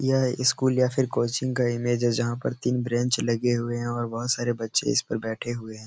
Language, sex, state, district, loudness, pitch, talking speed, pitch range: Hindi, male, Uttar Pradesh, Etah, -25 LUFS, 120 Hz, 245 wpm, 120-125 Hz